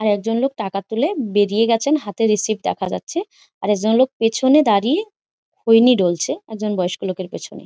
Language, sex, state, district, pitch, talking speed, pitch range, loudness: Bengali, female, West Bengal, Malda, 225 Hz, 170 wpm, 205-260 Hz, -18 LUFS